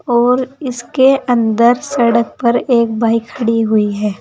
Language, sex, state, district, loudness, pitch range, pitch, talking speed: Hindi, female, Uttar Pradesh, Saharanpur, -14 LUFS, 230-250 Hz, 235 Hz, 145 wpm